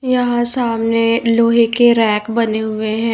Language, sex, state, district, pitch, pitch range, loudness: Hindi, female, Bihar, Kaimur, 230 Hz, 225-240 Hz, -15 LUFS